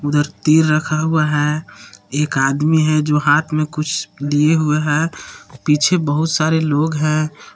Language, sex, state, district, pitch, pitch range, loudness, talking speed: Hindi, male, Jharkhand, Palamu, 155 Hz, 145-155 Hz, -17 LUFS, 160 wpm